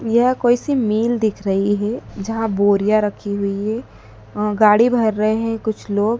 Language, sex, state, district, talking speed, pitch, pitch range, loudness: Hindi, female, Madhya Pradesh, Dhar, 185 wpm, 215 Hz, 205-230 Hz, -18 LUFS